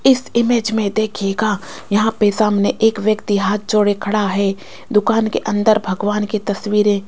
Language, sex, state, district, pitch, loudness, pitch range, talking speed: Hindi, female, Rajasthan, Jaipur, 210 Hz, -17 LUFS, 205-220 Hz, 170 wpm